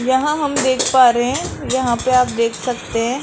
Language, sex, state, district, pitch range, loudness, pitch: Hindi, male, Rajasthan, Jaipur, 240-260 Hz, -17 LUFS, 255 Hz